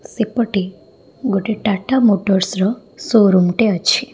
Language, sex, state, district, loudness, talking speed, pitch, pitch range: Odia, female, Odisha, Khordha, -16 LUFS, 130 wpm, 210 Hz, 195-235 Hz